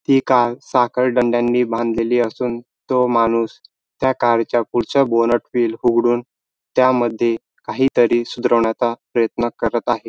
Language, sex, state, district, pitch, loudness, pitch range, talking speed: Marathi, male, Maharashtra, Dhule, 120 Hz, -18 LUFS, 115-125 Hz, 125 wpm